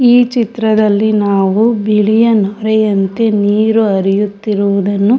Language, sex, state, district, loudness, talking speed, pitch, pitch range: Kannada, female, Karnataka, Shimoga, -12 LUFS, 80 wpm, 215 Hz, 200-225 Hz